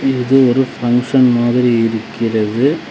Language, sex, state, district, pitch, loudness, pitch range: Tamil, male, Tamil Nadu, Namakkal, 125 Hz, -14 LUFS, 115-130 Hz